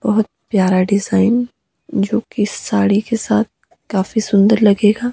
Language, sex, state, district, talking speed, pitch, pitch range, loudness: Hindi, male, Himachal Pradesh, Shimla, 130 wpm, 210 Hz, 200-220 Hz, -16 LUFS